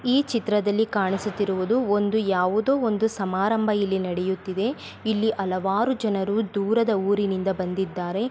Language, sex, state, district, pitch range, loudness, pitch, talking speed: Kannada, female, Karnataka, Bellary, 190-220 Hz, -24 LUFS, 205 Hz, 115 wpm